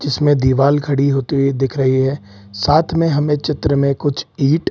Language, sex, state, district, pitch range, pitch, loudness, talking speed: Hindi, male, Bihar, Saran, 135-145 Hz, 140 Hz, -16 LUFS, 205 wpm